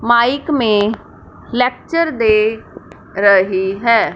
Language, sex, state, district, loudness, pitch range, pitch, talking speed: Hindi, female, Punjab, Fazilka, -15 LUFS, 205-250 Hz, 230 Hz, 85 wpm